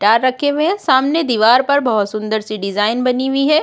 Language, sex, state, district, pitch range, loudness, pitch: Hindi, female, Uttarakhand, Tehri Garhwal, 215-285 Hz, -15 LUFS, 250 Hz